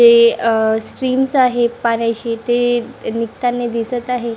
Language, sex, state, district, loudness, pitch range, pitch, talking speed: Marathi, male, Maharashtra, Chandrapur, -16 LUFS, 230-250 Hz, 240 Hz, 125 wpm